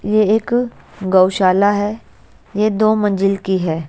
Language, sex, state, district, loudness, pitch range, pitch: Hindi, female, Haryana, Jhajjar, -16 LUFS, 190-215 Hz, 205 Hz